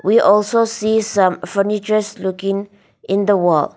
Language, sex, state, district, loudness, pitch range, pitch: English, female, Nagaland, Dimapur, -17 LUFS, 195-215 Hz, 200 Hz